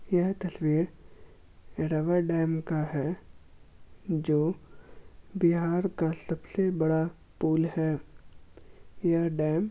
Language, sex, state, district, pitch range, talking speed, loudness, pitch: Hindi, male, Bihar, Gaya, 150-170 Hz, 100 wpm, -29 LUFS, 160 Hz